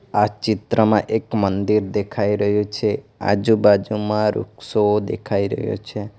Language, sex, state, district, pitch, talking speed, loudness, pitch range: Gujarati, male, Gujarat, Valsad, 105 Hz, 115 wpm, -20 LUFS, 100-110 Hz